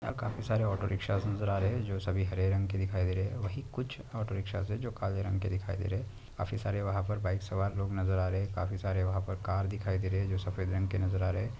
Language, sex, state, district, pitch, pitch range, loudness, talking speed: Hindi, male, Maharashtra, Nagpur, 95 Hz, 95-105 Hz, -34 LUFS, 300 wpm